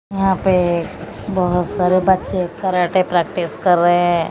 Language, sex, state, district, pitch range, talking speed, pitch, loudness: Hindi, female, Odisha, Malkangiri, 175-190 Hz, 140 wpm, 180 Hz, -17 LUFS